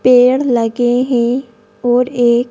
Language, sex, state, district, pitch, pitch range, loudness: Hindi, female, Madhya Pradesh, Bhopal, 245 Hz, 240-250 Hz, -14 LUFS